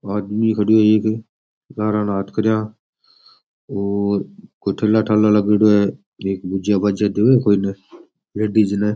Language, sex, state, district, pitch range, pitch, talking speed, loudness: Rajasthani, male, Rajasthan, Nagaur, 100-110 Hz, 105 Hz, 140 wpm, -18 LUFS